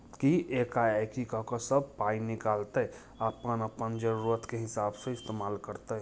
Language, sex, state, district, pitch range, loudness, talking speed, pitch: Hindi, male, Bihar, Muzaffarpur, 110-120 Hz, -33 LUFS, 140 wpm, 115 Hz